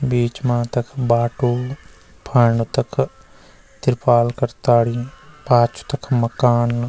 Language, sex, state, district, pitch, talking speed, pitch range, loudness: Garhwali, male, Uttarakhand, Uttarkashi, 120 Hz, 105 wpm, 120-125 Hz, -19 LUFS